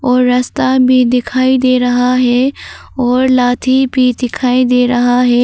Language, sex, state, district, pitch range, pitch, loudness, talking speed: Hindi, female, Arunachal Pradesh, Papum Pare, 245-255 Hz, 250 Hz, -12 LUFS, 155 wpm